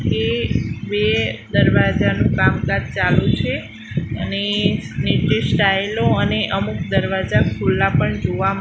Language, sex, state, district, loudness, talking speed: Gujarati, female, Gujarat, Gandhinagar, -18 LUFS, 105 wpm